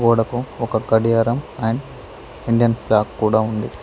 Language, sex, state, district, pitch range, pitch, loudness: Telugu, male, Telangana, Mahabubabad, 110-120 Hz, 115 Hz, -19 LUFS